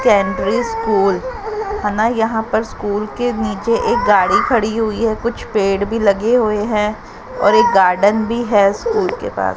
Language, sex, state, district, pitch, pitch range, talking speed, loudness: Hindi, female, Haryana, Jhajjar, 220 Hz, 205-235 Hz, 170 wpm, -16 LUFS